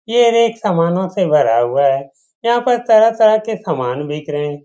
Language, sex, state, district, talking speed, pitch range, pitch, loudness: Hindi, male, Bihar, Saran, 205 wpm, 145-230 Hz, 185 Hz, -15 LUFS